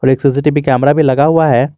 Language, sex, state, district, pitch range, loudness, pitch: Hindi, male, Jharkhand, Garhwa, 130-150 Hz, -11 LUFS, 140 Hz